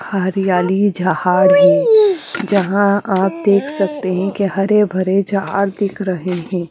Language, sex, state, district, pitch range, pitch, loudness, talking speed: Hindi, female, Punjab, Fazilka, 185-205 Hz, 195 Hz, -15 LUFS, 135 wpm